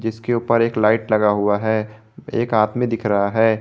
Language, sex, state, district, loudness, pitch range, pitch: Hindi, male, Jharkhand, Garhwa, -19 LUFS, 105-115 Hz, 110 Hz